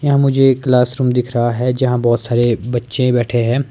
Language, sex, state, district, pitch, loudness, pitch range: Hindi, male, Himachal Pradesh, Shimla, 125 Hz, -15 LUFS, 120-130 Hz